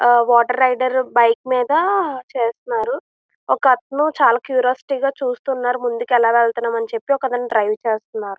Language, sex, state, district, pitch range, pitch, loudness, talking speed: Telugu, female, Andhra Pradesh, Visakhapatnam, 235-265 Hz, 245 Hz, -18 LUFS, 150 wpm